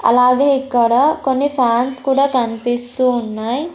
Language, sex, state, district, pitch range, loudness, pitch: Telugu, female, Andhra Pradesh, Sri Satya Sai, 240-270 Hz, -16 LUFS, 250 Hz